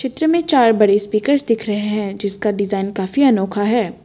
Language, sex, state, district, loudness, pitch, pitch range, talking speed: Hindi, female, Assam, Kamrup Metropolitan, -16 LUFS, 210 Hz, 200-250 Hz, 175 wpm